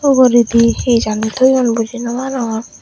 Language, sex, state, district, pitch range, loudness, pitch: Chakma, female, Tripura, Dhalai, 230-255 Hz, -14 LUFS, 240 Hz